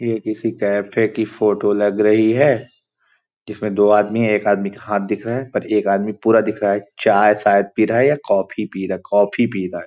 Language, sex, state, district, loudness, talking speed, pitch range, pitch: Hindi, male, Chhattisgarh, Balrampur, -17 LUFS, 235 wpm, 100-110 Hz, 105 Hz